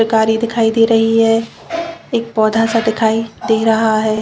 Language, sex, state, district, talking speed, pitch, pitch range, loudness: Hindi, female, Chhattisgarh, Bastar, 170 wpm, 225 Hz, 220-230 Hz, -15 LUFS